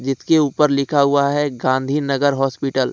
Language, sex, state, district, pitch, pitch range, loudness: Hindi, male, Jharkhand, Ranchi, 140 Hz, 135-145 Hz, -18 LUFS